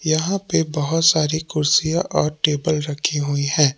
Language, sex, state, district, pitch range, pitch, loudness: Hindi, male, Jharkhand, Palamu, 150-160 Hz, 155 Hz, -19 LUFS